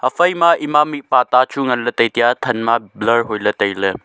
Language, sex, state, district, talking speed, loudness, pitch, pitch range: Wancho, male, Arunachal Pradesh, Longding, 220 wpm, -16 LUFS, 120 Hz, 115-135 Hz